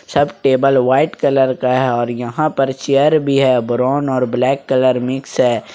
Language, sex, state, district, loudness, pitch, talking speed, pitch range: Hindi, male, Jharkhand, Ranchi, -15 LUFS, 130 Hz, 190 wpm, 125-140 Hz